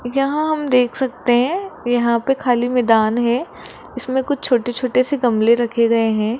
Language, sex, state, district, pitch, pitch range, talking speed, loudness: Hindi, female, Rajasthan, Jaipur, 245 Hz, 235-265 Hz, 180 wpm, -17 LUFS